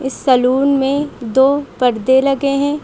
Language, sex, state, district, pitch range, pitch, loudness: Hindi, female, Uttar Pradesh, Lucknow, 260-280 Hz, 270 Hz, -15 LUFS